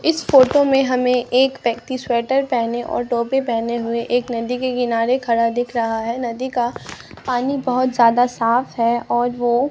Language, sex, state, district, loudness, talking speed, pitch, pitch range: Hindi, male, Bihar, Katihar, -19 LUFS, 180 wpm, 245 Hz, 235-260 Hz